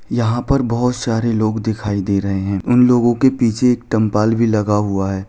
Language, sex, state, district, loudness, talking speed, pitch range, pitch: Hindi, male, Jharkhand, Sahebganj, -16 LUFS, 215 wpm, 105-120 Hz, 110 Hz